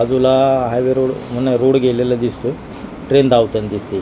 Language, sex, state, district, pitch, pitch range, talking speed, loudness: Marathi, male, Maharashtra, Mumbai Suburban, 125 Hz, 120-130 Hz, 150 wpm, -15 LUFS